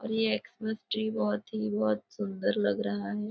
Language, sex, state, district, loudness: Hindi, female, Maharashtra, Nagpur, -31 LUFS